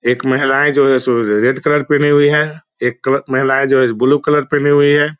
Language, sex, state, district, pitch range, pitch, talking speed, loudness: Hindi, male, Bihar, Muzaffarpur, 130-145 Hz, 140 Hz, 210 wpm, -13 LUFS